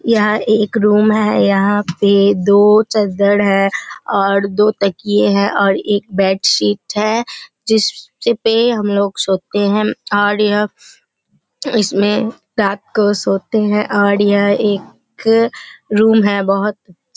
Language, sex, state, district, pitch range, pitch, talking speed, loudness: Hindi, female, Bihar, Kishanganj, 200-215 Hz, 205 Hz, 120 wpm, -14 LUFS